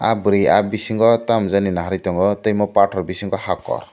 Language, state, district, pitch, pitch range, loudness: Kokborok, Tripura, Dhalai, 100 Hz, 95-110 Hz, -18 LUFS